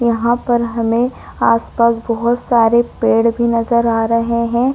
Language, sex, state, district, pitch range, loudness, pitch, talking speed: Hindi, female, Chhattisgarh, Korba, 230-235 Hz, -15 LUFS, 235 Hz, 150 wpm